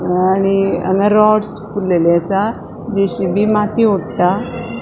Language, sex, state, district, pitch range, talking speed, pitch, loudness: Konkani, female, Goa, North and South Goa, 185-215 Hz, 110 wpm, 200 Hz, -15 LUFS